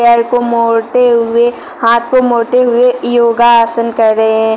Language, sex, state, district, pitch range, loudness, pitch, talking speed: Hindi, female, Jharkhand, Deoghar, 230-240 Hz, -10 LUFS, 235 Hz, 160 wpm